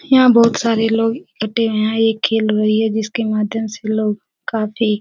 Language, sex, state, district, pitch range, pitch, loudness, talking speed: Hindi, female, Bihar, Jahanabad, 215-225 Hz, 220 Hz, -17 LUFS, 190 wpm